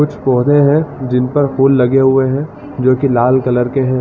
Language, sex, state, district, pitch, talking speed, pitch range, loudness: Hindi, male, Chhattisgarh, Balrampur, 135 Hz, 225 wpm, 130-145 Hz, -13 LUFS